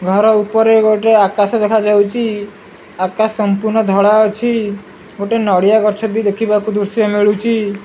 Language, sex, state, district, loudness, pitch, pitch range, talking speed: Odia, male, Odisha, Malkangiri, -13 LUFS, 210 Hz, 205-220 Hz, 130 wpm